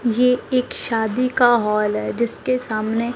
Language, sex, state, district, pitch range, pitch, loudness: Hindi, male, Maharashtra, Gondia, 220-250 Hz, 235 Hz, -20 LUFS